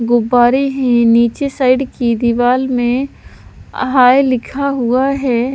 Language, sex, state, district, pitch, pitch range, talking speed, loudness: Hindi, female, Delhi, New Delhi, 250 Hz, 240-270 Hz, 120 wpm, -13 LUFS